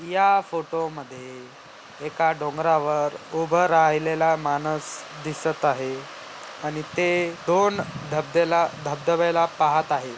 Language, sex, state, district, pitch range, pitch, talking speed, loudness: Marathi, male, Maharashtra, Aurangabad, 150-170 Hz, 160 Hz, 100 wpm, -23 LUFS